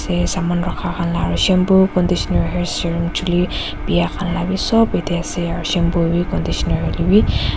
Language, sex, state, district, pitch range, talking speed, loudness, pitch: Nagamese, female, Nagaland, Dimapur, 170-180 Hz, 180 wpm, -18 LUFS, 175 Hz